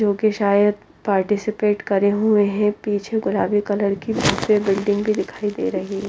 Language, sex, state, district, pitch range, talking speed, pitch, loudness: Hindi, female, Haryana, Rohtak, 200-210 Hz, 160 wpm, 205 Hz, -20 LUFS